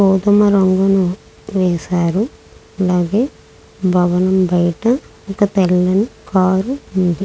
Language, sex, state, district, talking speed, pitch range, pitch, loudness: Telugu, female, Andhra Pradesh, Krishna, 85 wpm, 180-200 Hz, 190 Hz, -16 LUFS